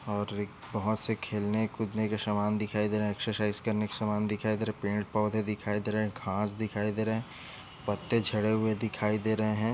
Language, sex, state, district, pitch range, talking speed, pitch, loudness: Hindi, male, Maharashtra, Aurangabad, 105-110 Hz, 210 wpm, 105 Hz, -31 LUFS